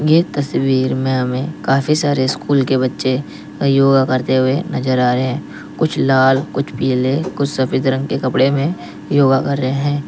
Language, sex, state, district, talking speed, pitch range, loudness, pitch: Hindi, male, Uttar Pradesh, Lalitpur, 180 wpm, 130-140 Hz, -16 LUFS, 135 Hz